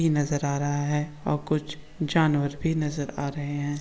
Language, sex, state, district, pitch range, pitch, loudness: Hindi, female, Maharashtra, Sindhudurg, 145-155 Hz, 150 Hz, -27 LUFS